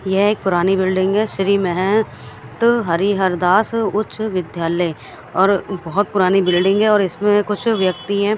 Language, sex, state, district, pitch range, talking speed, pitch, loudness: Hindi, female, Haryana, Charkhi Dadri, 185-210 Hz, 155 wpm, 195 Hz, -17 LUFS